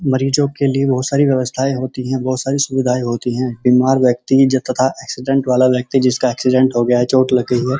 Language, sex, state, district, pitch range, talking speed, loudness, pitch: Hindi, male, Uttar Pradesh, Muzaffarnagar, 125-135 Hz, 215 wpm, -16 LUFS, 130 Hz